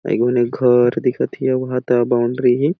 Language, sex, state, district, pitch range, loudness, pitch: Awadhi, male, Chhattisgarh, Balrampur, 120-130 Hz, -17 LUFS, 125 Hz